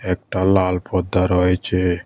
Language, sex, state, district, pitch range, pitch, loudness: Bengali, male, Tripura, West Tripura, 90-95 Hz, 90 Hz, -19 LUFS